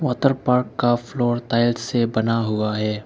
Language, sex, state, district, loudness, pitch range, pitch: Hindi, male, Arunachal Pradesh, Lower Dibang Valley, -21 LUFS, 110-125 Hz, 120 Hz